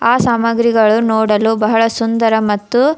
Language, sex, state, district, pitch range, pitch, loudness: Kannada, female, Karnataka, Dharwad, 220-235 Hz, 225 Hz, -13 LUFS